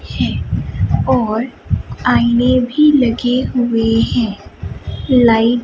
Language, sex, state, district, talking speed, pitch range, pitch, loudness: Hindi, female, Chhattisgarh, Raipur, 95 wpm, 225-250 Hz, 240 Hz, -15 LUFS